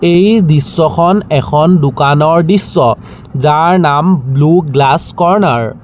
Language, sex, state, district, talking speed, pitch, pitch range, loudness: Assamese, male, Assam, Sonitpur, 115 wpm, 160 Hz, 140-175 Hz, -10 LUFS